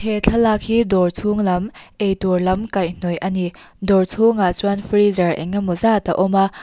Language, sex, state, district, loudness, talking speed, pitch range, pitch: Mizo, female, Mizoram, Aizawl, -18 LUFS, 180 wpm, 180-210 Hz, 195 Hz